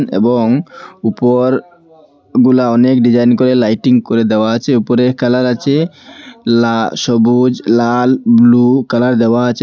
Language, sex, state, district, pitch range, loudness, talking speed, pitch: Bengali, male, Assam, Hailakandi, 120-130 Hz, -12 LUFS, 125 wpm, 125 Hz